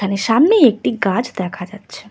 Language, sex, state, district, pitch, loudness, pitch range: Bengali, female, West Bengal, Cooch Behar, 200 Hz, -15 LUFS, 190-225 Hz